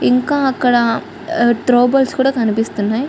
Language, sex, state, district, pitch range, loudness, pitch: Telugu, female, Andhra Pradesh, Chittoor, 235-270 Hz, -15 LUFS, 245 Hz